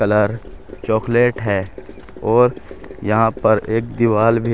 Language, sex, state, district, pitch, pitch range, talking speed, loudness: Hindi, male, Uttar Pradesh, Shamli, 115 Hz, 105-120 Hz, 130 wpm, -17 LUFS